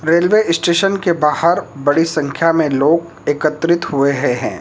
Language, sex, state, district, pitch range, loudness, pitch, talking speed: Hindi, male, Madhya Pradesh, Dhar, 145-170 Hz, -15 LUFS, 165 Hz, 145 wpm